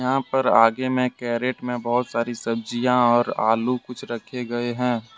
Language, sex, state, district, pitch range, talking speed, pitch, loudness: Hindi, male, Jharkhand, Ranchi, 120-125 Hz, 175 wpm, 120 Hz, -22 LUFS